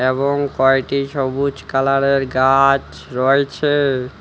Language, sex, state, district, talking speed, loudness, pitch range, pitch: Bengali, male, West Bengal, Alipurduar, 85 wpm, -17 LUFS, 130-140 Hz, 135 Hz